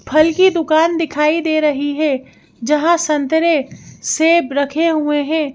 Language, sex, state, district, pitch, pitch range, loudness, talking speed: Hindi, female, Madhya Pradesh, Bhopal, 310 Hz, 295-330 Hz, -15 LUFS, 140 wpm